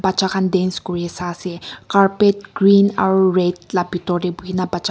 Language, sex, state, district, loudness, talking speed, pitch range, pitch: Nagamese, female, Nagaland, Kohima, -18 LUFS, 170 wpm, 180-190 Hz, 185 Hz